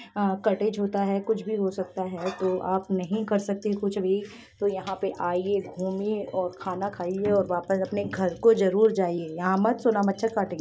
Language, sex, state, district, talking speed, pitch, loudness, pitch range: Hindi, female, Bihar, Begusarai, 185 wpm, 195 Hz, -26 LUFS, 185-205 Hz